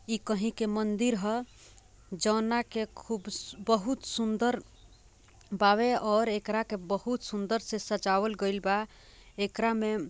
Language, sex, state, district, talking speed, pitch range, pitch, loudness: Bhojpuri, female, Bihar, Gopalganj, 130 wpm, 200-225 Hz, 215 Hz, -30 LUFS